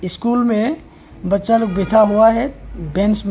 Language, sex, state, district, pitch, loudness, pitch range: Hindi, male, Arunachal Pradesh, Longding, 215 Hz, -16 LUFS, 200-230 Hz